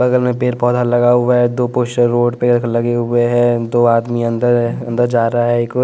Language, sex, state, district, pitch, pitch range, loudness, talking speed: Hindi, male, Bihar, West Champaran, 120 Hz, 120-125 Hz, -14 LUFS, 235 wpm